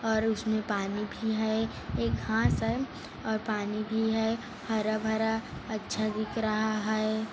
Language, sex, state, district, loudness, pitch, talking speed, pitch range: Hindi, female, Chhattisgarh, Kabirdham, -30 LUFS, 220 Hz, 140 wpm, 215-220 Hz